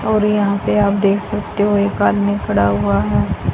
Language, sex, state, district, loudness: Hindi, female, Haryana, Jhajjar, -16 LUFS